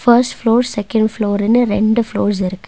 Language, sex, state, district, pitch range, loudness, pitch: Tamil, female, Tamil Nadu, Nilgiris, 205-235 Hz, -15 LUFS, 220 Hz